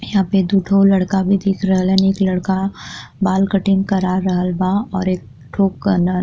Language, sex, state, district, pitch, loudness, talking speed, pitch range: Bhojpuri, female, Uttar Pradesh, Deoria, 190 Hz, -17 LUFS, 200 wpm, 185-195 Hz